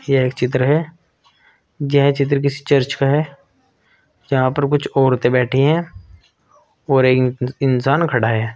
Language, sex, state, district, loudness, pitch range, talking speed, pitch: Hindi, male, Uttar Pradesh, Saharanpur, -17 LUFS, 125-140 Hz, 145 wpm, 135 Hz